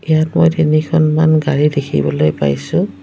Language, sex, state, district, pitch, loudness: Assamese, female, Assam, Kamrup Metropolitan, 155 Hz, -14 LUFS